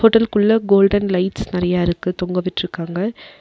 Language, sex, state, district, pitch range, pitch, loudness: Tamil, female, Tamil Nadu, Nilgiris, 180-220 Hz, 195 Hz, -18 LUFS